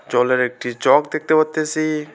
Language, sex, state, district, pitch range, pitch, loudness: Bengali, male, West Bengal, Alipurduar, 125-155 Hz, 150 Hz, -18 LUFS